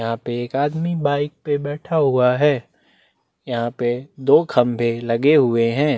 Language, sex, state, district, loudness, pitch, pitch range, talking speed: Hindi, male, Chhattisgarh, Bastar, -19 LUFS, 130 Hz, 120-145 Hz, 160 wpm